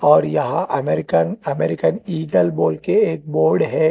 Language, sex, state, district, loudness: Hindi, male, Telangana, Hyderabad, -18 LUFS